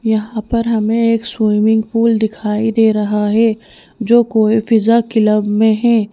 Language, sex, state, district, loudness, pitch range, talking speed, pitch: Hindi, female, Madhya Pradesh, Bhopal, -14 LUFS, 215-230 Hz, 145 wpm, 220 Hz